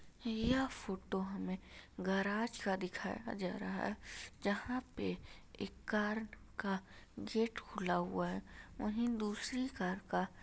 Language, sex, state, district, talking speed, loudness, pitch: Hindi, female, Uttar Pradesh, Ghazipur, 130 wpm, -40 LUFS, 195 Hz